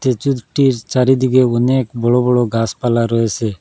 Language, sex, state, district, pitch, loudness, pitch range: Bengali, male, Assam, Hailakandi, 125 Hz, -15 LUFS, 115-130 Hz